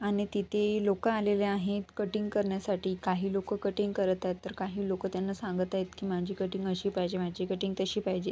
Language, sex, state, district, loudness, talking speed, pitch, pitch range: Marathi, female, Maharashtra, Sindhudurg, -32 LUFS, 195 wpm, 195 Hz, 185-205 Hz